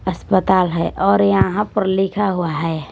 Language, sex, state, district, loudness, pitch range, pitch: Hindi, female, Punjab, Kapurthala, -17 LUFS, 160-195 Hz, 185 Hz